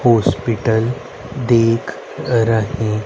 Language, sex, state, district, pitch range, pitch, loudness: Hindi, male, Haryana, Rohtak, 110-120 Hz, 115 Hz, -17 LUFS